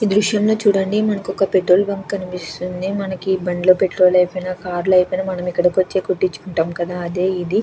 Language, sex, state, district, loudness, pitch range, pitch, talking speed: Telugu, female, Andhra Pradesh, Krishna, -18 LUFS, 180-195 Hz, 185 Hz, 155 wpm